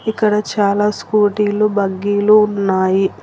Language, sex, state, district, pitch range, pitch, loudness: Telugu, female, Telangana, Hyderabad, 200-210 Hz, 205 Hz, -15 LUFS